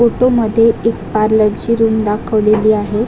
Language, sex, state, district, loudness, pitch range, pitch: Marathi, female, Maharashtra, Dhule, -13 LUFS, 215-230 Hz, 220 Hz